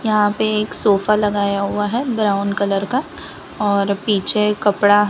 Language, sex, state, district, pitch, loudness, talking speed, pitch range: Hindi, female, Gujarat, Valsad, 205 Hz, -18 LUFS, 155 wpm, 200-215 Hz